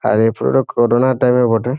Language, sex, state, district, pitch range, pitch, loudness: Bengali, male, West Bengal, Jhargram, 110-125 Hz, 120 Hz, -15 LUFS